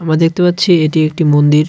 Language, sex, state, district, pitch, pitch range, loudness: Bengali, male, West Bengal, Cooch Behar, 160 Hz, 155-175 Hz, -12 LUFS